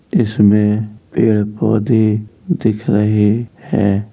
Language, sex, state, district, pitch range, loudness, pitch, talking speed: Hindi, male, Uttar Pradesh, Jalaun, 105-110 Hz, -15 LUFS, 105 Hz, 85 wpm